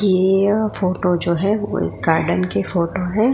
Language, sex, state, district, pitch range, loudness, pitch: Hindi, female, Gujarat, Gandhinagar, 175-205 Hz, -19 LUFS, 185 Hz